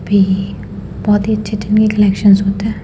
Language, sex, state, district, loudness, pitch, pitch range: Hindi, female, Madhya Pradesh, Bhopal, -13 LUFS, 205 Hz, 195-215 Hz